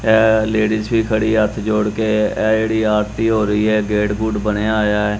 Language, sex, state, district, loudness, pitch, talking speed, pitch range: Punjabi, male, Punjab, Kapurthala, -17 LUFS, 110 Hz, 205 wpm, 105-110 Hz